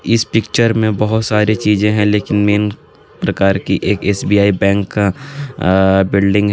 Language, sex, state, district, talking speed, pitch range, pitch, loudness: Hindi, male, Jharkhand, Garhwa, 155 wpm, 100-110 Hz, 105 Hz, -14 LUFS